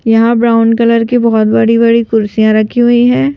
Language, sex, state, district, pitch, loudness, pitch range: Hindi, female, Madhya Pradesh, Bhopal, 230 Hz, -9 LUFS, 225-235 Hz